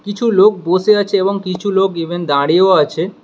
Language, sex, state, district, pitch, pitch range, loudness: Bengali, male, West Bengal, Alipurduar, 190 Hz, 175-205 Hz, -14 LUFS